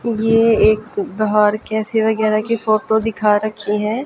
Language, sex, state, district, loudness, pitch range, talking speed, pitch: Hindi, female, Haryana, Jhajjar, -17 LUFS, 210-220 Hz, 135 wpm, 215 Hz